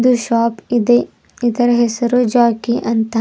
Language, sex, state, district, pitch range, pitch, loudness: Kannada, female, Karnataka, Bidar, 230-245 Hz, 235 Hz, -15 LUFS